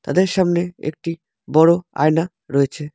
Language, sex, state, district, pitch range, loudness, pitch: Bengali, male, West Bengal, Alipurduar, 150-175 Hz, -19 LUFS, 165 Hz